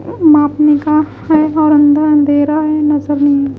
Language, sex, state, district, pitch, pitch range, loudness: Hindi, female, Bihar, West Champaran, 300 Hz, 290-305 Hz, -11 LUFS